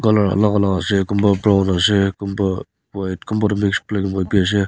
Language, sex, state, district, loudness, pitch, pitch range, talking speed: Nagamese, male, Nagaland, Kohima, -18 LUFS, 100 Hz, 95-105 Hz, 220 wpm